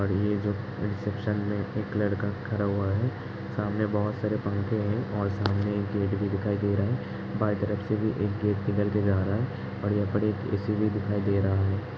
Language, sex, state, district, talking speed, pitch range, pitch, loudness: Hindi, male, Uttar Pradesh, Hamirpur, 225 wpm, 100-105 Hz, 105 Hz, -28 LUFS